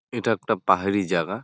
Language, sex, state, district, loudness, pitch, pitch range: Bengali, male, West Bengal, Jalpaiguri, -23 LUFS, 100 Hz, 95-115 Hz